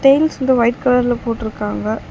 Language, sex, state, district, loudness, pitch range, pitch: Tamil, female, Tamil Nadu, Chennai, -17 LUFS, 225-260 Hz, 245 Hz